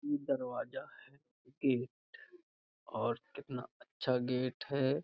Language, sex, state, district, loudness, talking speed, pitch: Hindi, male, Uttar Pradesh, Budaun, -38 LUFS, 105 wpm, 140 Hz